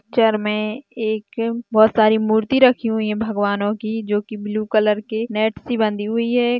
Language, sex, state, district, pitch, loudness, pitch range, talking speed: Hindi, female, Rajasthan, Churu, 220 Hz, -19 LUFS, 215-230 Hz, 200 wpm